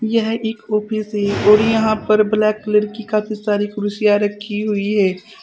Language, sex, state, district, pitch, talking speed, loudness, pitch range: Hindi, female, Uttar Pradesh, Saharanpur, 215 Hz, 175 wpm, -17 LUFS, 205-215 Hz